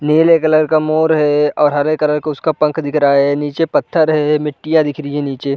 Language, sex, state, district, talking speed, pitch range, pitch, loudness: Hindi, male, Uttar Pradesh, Varanasi, 235 wpm, 145-155 Hz, 150 Hz, -14 LUFS